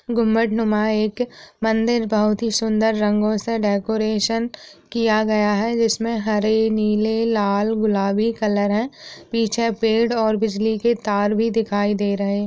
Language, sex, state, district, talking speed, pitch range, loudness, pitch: Hindi, female, Uttar Pradesh, Etah, 160 wpm, 210-230 Hz, -20 LUFS, 220 Hz